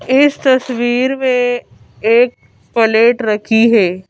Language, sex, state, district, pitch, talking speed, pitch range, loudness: Hindi, female, Madhya Pradesh, Bhopal, 240 Hz, 100 wpm, 225-255 Hz, -13 LUFS